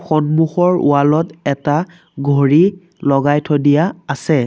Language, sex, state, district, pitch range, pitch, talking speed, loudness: Assamese, male, Assam, Sonitpur, 145-165 Hz, 150 Hz, 120 wpm, -15 LUFS